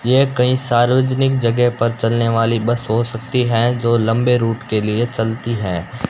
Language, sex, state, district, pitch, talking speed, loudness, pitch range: Hindi, male, Rajasthan, Bikaner, 115 Hz, 175 wpm, -17 LUFS, 115-125 Hz